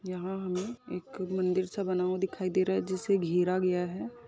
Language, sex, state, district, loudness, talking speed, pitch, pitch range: Hindi, female, Uttar Pradesh, Budaun, -31 LUFS, 210 wpm, 185 Hz, 180-190 Hz